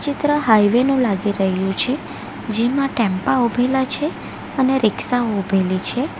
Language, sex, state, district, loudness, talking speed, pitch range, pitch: Gujarati, female, Gujarat, Valsad, -19 LUFS, 135 wpm, 205-265 Hz, 245 Hz